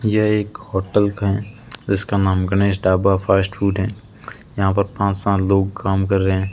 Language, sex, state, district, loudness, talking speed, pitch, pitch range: Hindi, male, Rajasthan, Bikaner, -19 LUFS, 185 wpm, 100 Hz, 95-100 Hz